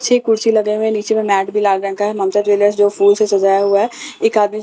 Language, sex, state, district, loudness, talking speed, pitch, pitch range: Hindi, female, Bihar, Katihar, -15 LUFS, 325 wpm, 205 Hz, 200-220 Hz